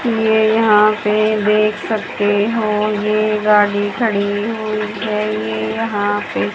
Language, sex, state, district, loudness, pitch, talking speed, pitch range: Hindi, female, Haryana, Jhajjar, -16 LUFS, 210 Hz, 130 wpm, 205-215 Hz